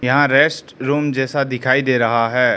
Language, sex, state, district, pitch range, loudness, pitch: Hindi, male, Arunachal Pradesh, Lower Dibang Valley, 125-145 Hz, -16 LUFS, 130 Hz